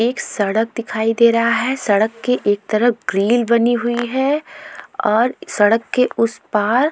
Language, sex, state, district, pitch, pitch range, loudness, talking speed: Hindi, female, Goa, North and South Goa, 235 Hz, 220-250 Hz, -17 LUFS, 165 wpm